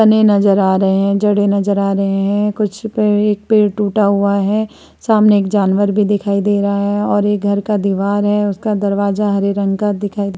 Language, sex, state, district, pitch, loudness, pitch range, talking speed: Hindi, female, Uttar Pradesh, Muzaffarnagar, 205 Hz, -14 LUFS, 200-210 Hz, 215 wpm